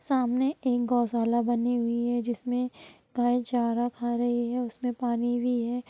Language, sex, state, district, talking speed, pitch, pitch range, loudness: Hindi, female, Bihar, Sitamarhi, 165 wpm, 240 Hz, 240-245 Hz, -28 LUFS